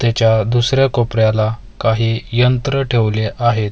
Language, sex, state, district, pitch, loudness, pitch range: Marathi, male, Maharashtra, Mumbai Suburban, 115 Hz, -16 LUFS, 110-120 Hz